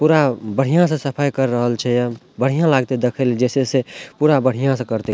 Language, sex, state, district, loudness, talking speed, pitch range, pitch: Maithili, male, Bihar, Madhepura, -18 LUFS, 210 wpm, 125-140 Hz, 130 Hz